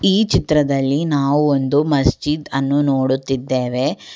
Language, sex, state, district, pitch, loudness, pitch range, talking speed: Kannada, female, Karnataka, Bangalore, 140 Hz, -17 LUFS, 135-150 Hz, 100 wpm